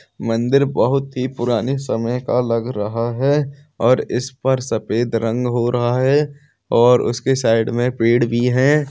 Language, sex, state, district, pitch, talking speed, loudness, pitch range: Hindi, male, Bihar, Samastipur, 125 Hz, 170 wpm, -18 LUFS, 115-135 Hz